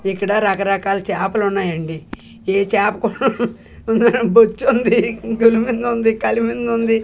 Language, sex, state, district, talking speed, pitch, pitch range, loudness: Telugu, female, Andhra Pradesh, Manyam, 100 wpm, 225 Hz, 200-230 Hz, -17 LUFS